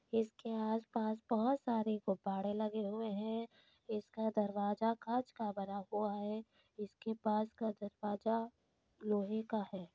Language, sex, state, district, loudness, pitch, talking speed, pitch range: Hindi, female, Uttar Pradesh, Deoria, -39 LUFS, 215 Hz, 140 wpm, 205-225 Hz